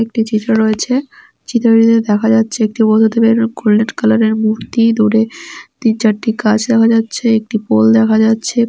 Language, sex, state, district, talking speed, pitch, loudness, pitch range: Bengali, female, West Bengal, Dakshin Dinajpur, 175 wpm, 225 Hz, -13 LUFS, 220-230 Hz